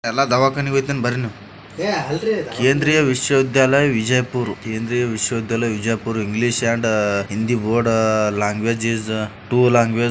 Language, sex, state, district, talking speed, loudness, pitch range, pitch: Kannada, male, Karnataka, Bijapur, 130 wpm, -19 LUFS, 110-130 Hz, 120 Hz